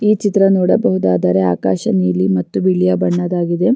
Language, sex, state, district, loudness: Kannada, female, Karnataka, Raichur, -15 LUFS